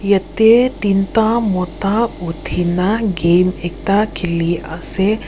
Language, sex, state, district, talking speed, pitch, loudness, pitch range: Nagamese, female, Nagaland, Kohima, 80 wpm, 195 Hz, -16 LUFS, 175-215 Hz